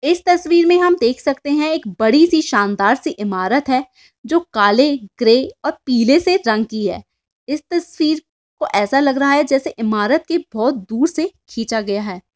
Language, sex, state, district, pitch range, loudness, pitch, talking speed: Hindi, female, Andhra Pradesh, Krishna, 220-320 Hz, -16 LUFS, 275 Hz, 190 wpm